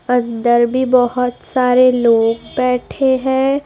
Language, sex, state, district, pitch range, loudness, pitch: Hindi, female, Madhya Pradesh, Dhar, 240-260 Hz, -15 LUFS, 250 Hz